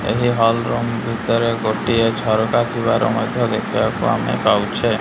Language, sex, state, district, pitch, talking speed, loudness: Odia, male, Odisha, Malkangiri, 115 Hz, 130 wpm, -18 LUFS